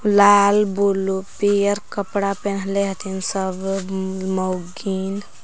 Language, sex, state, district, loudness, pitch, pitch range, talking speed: Magahi, female, Jharkhand, Palamu, -20 LUFS, 195 Hz, 190-200 Hz, 90 wpm